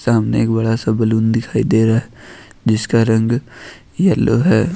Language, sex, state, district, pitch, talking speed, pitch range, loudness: Hindi, male, Jharkhand, Ranchi, 115 Hz, 165 wpm, 110-115 Hz, -16 LUFS